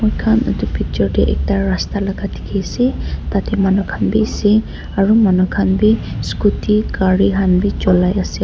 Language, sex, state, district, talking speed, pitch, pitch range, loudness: Nagamese, female, Nagaland, Dimapur, 155 wpm, 195 Hz, 185-210 Hz, -16 LUFS